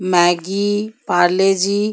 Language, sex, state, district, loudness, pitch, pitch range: Hindi, female, Jharkhand, Ranchi, -16 LUFS, 195 Hz, 175-205 Hz